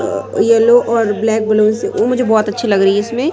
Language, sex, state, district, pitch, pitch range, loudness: Hindi, female, Chhattisgarh, Raipur, 225 Hz, 215-265 Hz, -13 LUFS